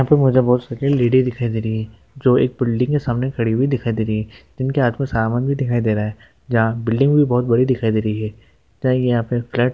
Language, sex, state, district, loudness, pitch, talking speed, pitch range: Hindi, male, West Bengal, Malda, -18 LUFS, 120 Hz, 265 wpm, 110-130 Hz